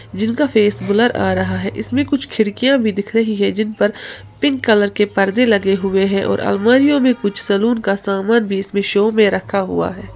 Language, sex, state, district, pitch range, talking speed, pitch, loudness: Hindi, female, Uttar Pradesh, Lalitpur, 195-235 Hz, 205 wpm, 205 Hz, -16 LUFS